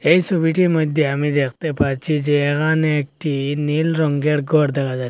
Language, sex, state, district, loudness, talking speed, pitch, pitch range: Bengali, male, Assam, Hailakandi, -18 LUFS, 165 wpm, 150 Hz, 140-160 Hz